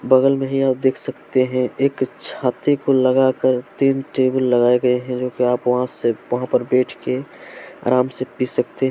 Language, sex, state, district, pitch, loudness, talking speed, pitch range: Hindi, male, Jharkhand, Deoghar, 130 Hz, -19 LUFS, 200 wpm, 125-135 Hz